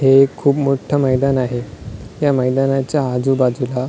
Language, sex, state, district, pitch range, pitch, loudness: Marathi, male, Maharashtra, Sindhudurg, 125-135 Hz, 130 Hz, -17 LUFS